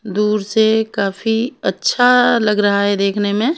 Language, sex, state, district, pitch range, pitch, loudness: Hindi, female, Himachal Pradesh, Shimla, 205-230 Hz, 215 Hz, -15 LUFS